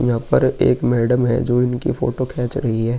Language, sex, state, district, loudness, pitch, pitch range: Hindi, male, Uttar Pradesh, Muzaffarnagar, -18 LUFS, 120 Hz, 115-125 Hz